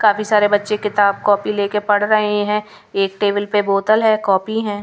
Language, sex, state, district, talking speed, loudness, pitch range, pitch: Hindi, female, Punjab, Pathankot, 200 wpm, -17 LUFS, 205-210 Hz, 205 Hz